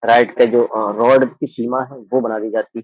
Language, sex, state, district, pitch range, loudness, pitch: Hindi, male, Uttar Pradesh, Jyotiba Phule Nagar, 115-130 Hz, -16 LUFS, 120 Hz